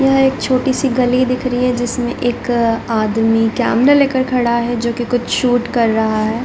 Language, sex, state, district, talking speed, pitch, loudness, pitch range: Hindi, female, Bihar, Darbhanga, 185 wpm, 245 Hz, -15 LUFS, 235-255 Hz